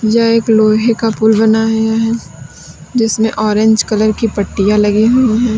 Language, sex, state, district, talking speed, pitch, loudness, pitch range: Hindi, female, Uttar Pradesh, Lalitpur, 170 wpm, 220 Hz, -12 LUFS, 215-225 Hz